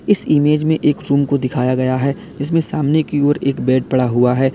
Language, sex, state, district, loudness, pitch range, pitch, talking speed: Hindi, male, Uttar Pradesh, Lalitpur, -16 LUFS, 130-150 Hz, 140 Hz, 235 wpm